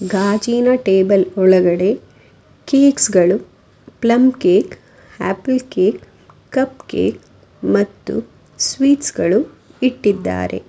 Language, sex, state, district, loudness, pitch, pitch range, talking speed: Kannada, female, Karnataka, Bangalore, -16 LUFS, 205 Hz, 185-255 Hz, 85 wpm